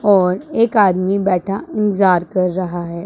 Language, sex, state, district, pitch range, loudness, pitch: Hindi, female, Punjab, Pathankot, 180-200 Hz, -16 LUFS, 190 Hz